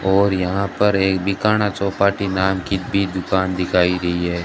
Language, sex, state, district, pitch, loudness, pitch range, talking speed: Hindi, male, Rajasthan, Bikaner, 95 Hz, -19 LUFS, 90-100 Hz, 175 wpm